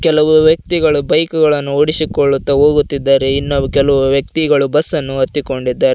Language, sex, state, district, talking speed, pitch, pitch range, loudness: Kannada, male, Karnataka, Koppal, 100 wpm, 145 Hz, 140-155 Hz, -13 LUFS